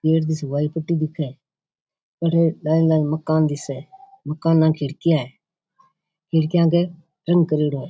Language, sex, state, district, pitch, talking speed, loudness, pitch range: Rajasthani, female, Rajasthan, Nagaur, 160 Hz, 130 wpm, -20 LUFS, 150-170 Hz